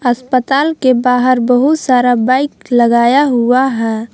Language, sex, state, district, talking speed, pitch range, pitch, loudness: Hindi, female, Jharkhand, Palamu, 130 wpm, 240-265 Hz, 250 Hz, -12 LUFS